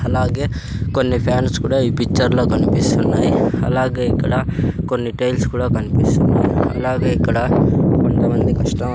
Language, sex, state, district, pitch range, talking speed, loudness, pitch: Telugu, male, Andhra Pradesh, Sri Satya Sai, 120-130 Hz, 135 wpm, -17 LUFS, 125 Hz